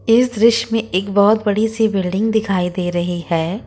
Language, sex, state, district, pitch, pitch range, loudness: Hindi, female, Jharkhand, Ranchi, 205 Hz, 180-225 Hz, -17 LUFS